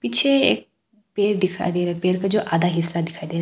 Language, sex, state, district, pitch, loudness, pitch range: Hindi, female, Arunachal Pradesh, Papum Pare, 180 Hz, -20 LUFS, 170-205 Hz